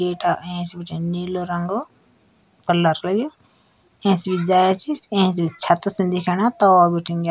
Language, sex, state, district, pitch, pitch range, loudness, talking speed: Garhwali, male, Uttarakhand, Tehri Garhwal, 180 Hz, 175-195 Hz, -19 LUFS, 165 wpm